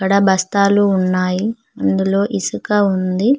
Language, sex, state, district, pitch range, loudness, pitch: Telugu, female, Telangana, Mahabubabad, 185-205 Hz, -16 LUFS, 195 Hz